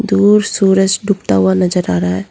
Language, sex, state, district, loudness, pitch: Hindi, female, Arunachal Pradesh, Lower Dibang Valley, -13 LUFS, 190 Hz